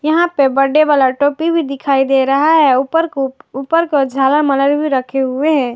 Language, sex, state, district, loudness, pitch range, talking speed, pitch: Hindi, female, Jharkhand, Garhwa, -14 LUFS, 270-305 Hz, 210 wpm, 275 Hz